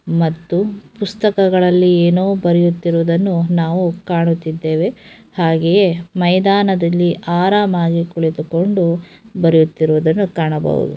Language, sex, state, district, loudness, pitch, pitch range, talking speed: Kannada, female, Karnataka, Dharwad, -15 LUFS, 175 Hz, 165-190 Hz, 65 wpm